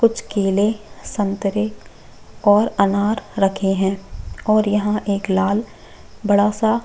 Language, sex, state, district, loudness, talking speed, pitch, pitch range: Hindi, female, Chhattisgarh, Bastar, -19 LUFS, 115 wpm, 205 Hz, 195-215 Hz